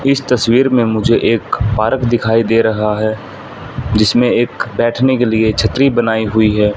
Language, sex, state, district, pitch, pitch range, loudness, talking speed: Hindi, male, Haryana, Rohtak, 115 Hz, 110-125 Hz, -13 LUFS, 170 wpm